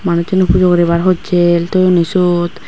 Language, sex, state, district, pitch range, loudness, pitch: Chakma, female, Tripura, West Tripura, 170-185 Hz, -12 LUFS, 175 Hz